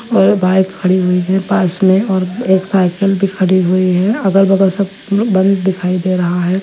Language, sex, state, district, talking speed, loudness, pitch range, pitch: Hindi, female, Punjab, Fazilka, 200 wpm, -13 LUFS, 185-195 Hz, 190 Hz